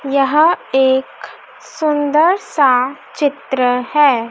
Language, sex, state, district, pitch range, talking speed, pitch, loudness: Hindi, female, Madhya Pradesh, Dhar, 260-300 Hz, 85 wpm, 280 Hz, -15 LUFS